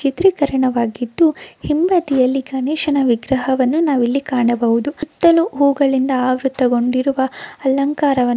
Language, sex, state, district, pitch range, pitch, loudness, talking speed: Kannada, female, Karnataka, Belgaum, 255-295 Hz, 270 Hz, -17 LUFS, 70 wpm